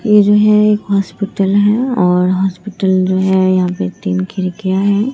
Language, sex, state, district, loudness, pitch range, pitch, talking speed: Hindi, female, Bihar, Katihar, -13 LUFS, 185-205 Hz, 195 Hz, 175 wpm